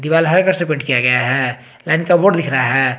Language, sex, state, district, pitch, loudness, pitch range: Hindi, male, Jharkhand, Garhwa, 150 Hz, -15 LUFS, 130-170 Hz